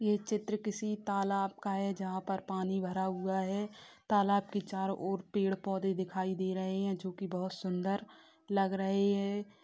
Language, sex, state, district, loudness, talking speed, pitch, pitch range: Hindi, female, Bihar, Sitamarhi, -35 LUFS, 175 wpm, 195 Hz, 190-200 Hz